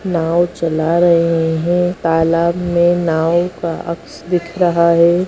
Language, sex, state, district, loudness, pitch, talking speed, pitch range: Hindi, female, Bihar, Bhagalpur, -15 LUFS, 170 Hz, 135 wpm, 165-175 Hz